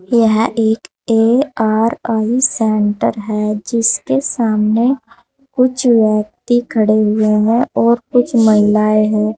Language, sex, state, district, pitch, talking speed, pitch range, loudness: Hindi, female, Uttar Pradesh, Saharanpur, 225 Hz, 100 wpm, 215-235 Hz, -14 LUFS